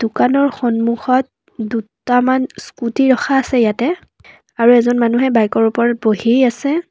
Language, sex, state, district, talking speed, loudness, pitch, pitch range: Assamese, female, Assam, Kamrup Metropolitan, 120 wpm, -15 LUFS, 240 Hz, 230-260 Hz